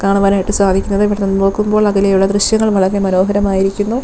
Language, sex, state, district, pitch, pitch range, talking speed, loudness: Malayalam, female, Kerala, Thiruvananthapuram, 200 Hz, 195-205 Hz, 135 wpm, -13 LUFS